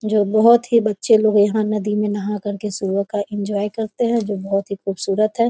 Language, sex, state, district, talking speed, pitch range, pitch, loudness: Maithili, female, Bihar, Muzaffarpur, 220 wpm, 205-215 Hz, 210 Hz, -19 LUFS